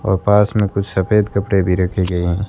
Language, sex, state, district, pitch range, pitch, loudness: Hindi, male, Rajasthan, Bikaner, 90-105 Hz, 100 Hz, -16 LUFS